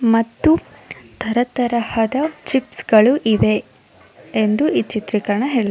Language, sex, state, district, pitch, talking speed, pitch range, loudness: Kannada, female, Karnataka, Mysore, 235 Hz, 115 wpm, 215-260 Hz, -18 LUFS